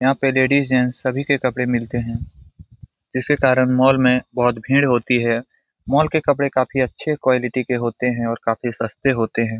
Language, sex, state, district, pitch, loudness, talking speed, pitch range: Hindi, male, Bihar, Lakhisarai, 125 Hz, -19 LUFS, 195 wpm, 115-135 Hz